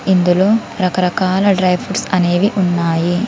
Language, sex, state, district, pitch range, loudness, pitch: Telugu, female, Telangana, Komaram Bheem, 180-190 Hz, -15 LUFS, 185 Hz